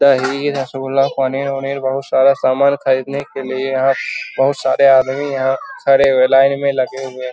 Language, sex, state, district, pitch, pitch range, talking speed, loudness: Hindi, male, Bihar, Jamui, 135 Hz, 130-140 Hz, 170 wpm, -15 LUFS